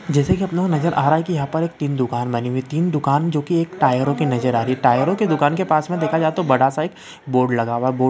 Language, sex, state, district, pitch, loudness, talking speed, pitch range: Hindi, male, Uttarakhand, Uttarkashi, 150 Hz, -19 LUFS, 350 wpm, 130-165 Hz